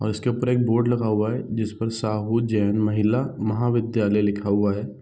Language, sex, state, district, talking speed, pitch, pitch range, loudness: Hindi, male, Bihar, Gopalganj, 190 wpm, 110 Hz, 105-120 Hz, -23 LUFS